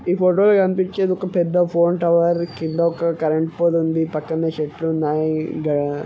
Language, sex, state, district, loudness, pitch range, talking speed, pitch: Telugu, male, Telangana, Karimnagar, -19 LUFS, 155-175 Hz, 180 wpm, 170 Hz